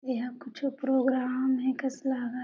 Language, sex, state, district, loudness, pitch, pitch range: Chhattisgarhi, female, Chhattisgarh, Jashpur, -30 LUFS, 260 Hz, 255-265 Hz